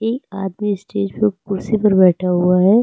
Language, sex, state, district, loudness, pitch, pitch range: Hindi, female, Uttar Pradesh, Lucknow, -17 LUFS, 195 Hz, 180-210 Hz